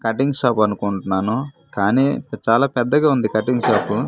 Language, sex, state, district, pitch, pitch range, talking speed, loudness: Telugu, male, Andhra Pradesh, Manyam, 120 Hz, 110-135 Hz, 145 wpm, -18 LUFS